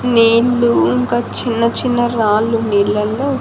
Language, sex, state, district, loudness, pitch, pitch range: Telugu, female, Andhra Pradesh, Annamaya, -15 LUFS, 230 Hz, 210-240 Hz